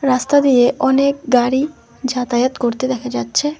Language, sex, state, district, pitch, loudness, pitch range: Bengali, female, West Bengal, Alipurduar, 260 Hz, -16 LUFS, 245-280 Hz